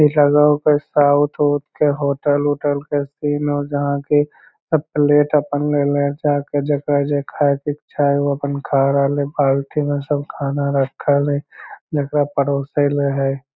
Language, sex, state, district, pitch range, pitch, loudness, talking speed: Magahi, male, Bihar, Lakhisarai, 140-145 Hz, 145 Hz, -18 LUFS, 190 wpm